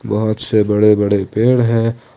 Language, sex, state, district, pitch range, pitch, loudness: Hindi, male, Jharkhand, Ranchi, 105-115 Hz, 110 Hz, -14 LUFS